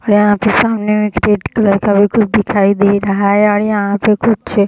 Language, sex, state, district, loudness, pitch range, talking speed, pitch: Hindi, female, Bihar, Sitamarhi, -12 LUFS, 200-215 Hz, 255 wpm, 205 Hz